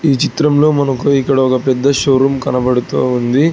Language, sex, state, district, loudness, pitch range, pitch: Telugu, male, Telangana, Hyderabad, -13 LUFS, 130-145 Hz, 135 Hz